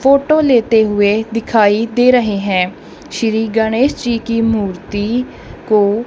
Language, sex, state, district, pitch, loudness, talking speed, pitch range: Hindi, female, Punjab, Kapurthala, 225 Hz, -14 LUFS, 130 wpm, 210-245 Hz